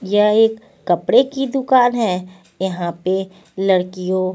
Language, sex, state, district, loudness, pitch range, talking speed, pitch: Hindi, female, Punjab, Pathankot, -18 LUFS, 185-225 Hz, 125 wpm, 190 Hz